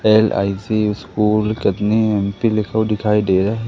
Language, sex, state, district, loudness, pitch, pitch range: Hindi, male, Madhya Pradesh, Katni, -17 LUFS, 105 Hz, 100-110 Hz